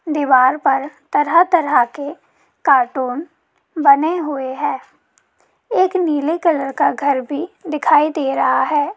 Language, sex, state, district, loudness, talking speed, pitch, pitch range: Hindi, female, Jharkhand, Sahebganj, -16 LUFS, 125 wpm, 295 Hz, 275-335 Hz